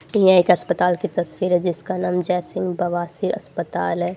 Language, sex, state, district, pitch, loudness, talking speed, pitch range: Hindi, female, Haryana, Charkhi Dadri, 180 Hz, -21 LUFS, 185 wpm, 175-185 Hz